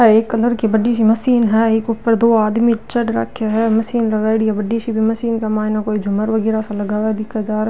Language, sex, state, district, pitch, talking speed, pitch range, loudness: Marwari, female, Rajasthan, Nagaur, 220 Hz, 240 wpm, 215-230 Hz, -16 LUFS